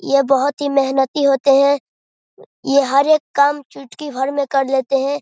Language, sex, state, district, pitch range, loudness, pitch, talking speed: Hindi, male, Bihar, Begusarai, 270-285 Hz, -16 LUFS, 275 Hz, 185 wpm